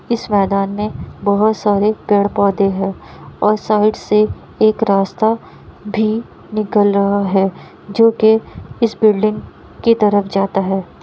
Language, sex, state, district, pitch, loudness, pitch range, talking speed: Hindi, female, Bihar, Kishanganj, 210 Hz, -16 LUFS, 200-215 Hz, 130 wpm